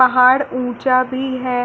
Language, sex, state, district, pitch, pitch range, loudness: Hindi, female, Chhattisgarh, Balrampur, 255 Hz, 250-255 Hz, -16 LUFS